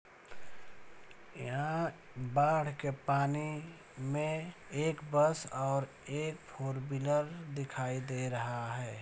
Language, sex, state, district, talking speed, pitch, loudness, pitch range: Hindi, male, Bihar, Muzaffarpur, 100 wpm, 145 Hz, -36 LUFS, 130-155 Hz